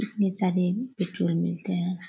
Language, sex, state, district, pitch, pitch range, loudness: Hindi, female, Uttar Pradesh, Gorakhpur, 185 Hz, 175-195 Hz, -27 LUFS